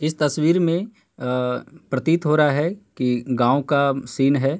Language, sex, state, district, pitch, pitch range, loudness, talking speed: Hindi, male, Uttar Pradesh, Hamirpur, 140 Hz, 130-160 Hz, -21 LUFS, 170 wpm